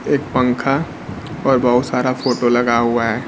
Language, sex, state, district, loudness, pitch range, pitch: Hindi, male, Bihar, Kaimur, -17 LUFS, 120-130 Hz, 125 Hz